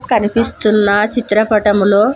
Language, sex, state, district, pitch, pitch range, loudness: Telugu, female, Andhra Pradesh, Sri Satya Sai, 215 Hz, 205-230 Hz, -13 LUFS